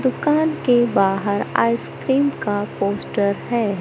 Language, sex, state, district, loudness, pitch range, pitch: Hindi, male, Madhya Pradesh, Katni, -20 LUFS, 200-260 Hz, 230 Hz